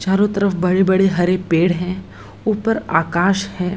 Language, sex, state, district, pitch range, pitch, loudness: Hindi, female, Bihar, Lakhisarai, 180-200 Hz, 185 Hz, -17 LUFS